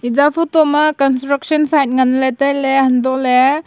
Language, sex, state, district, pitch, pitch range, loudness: Wancho, female, Arunachal Pradesh, Longding, 275 Hz, 260-300 Hz, -14 LUFS